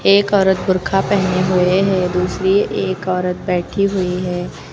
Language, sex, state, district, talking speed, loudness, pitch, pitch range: Hindi, female, Uttar Pradesh, Lucknow, 150 wpm, -17 LUFS, 185 Hz, 180-195 Hz